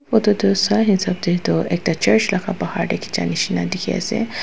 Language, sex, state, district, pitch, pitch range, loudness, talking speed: Nagamese, female, Nagaland, Dimapur, 205 Hz, 185-220 Hz, -19 LUFS, 190 wpm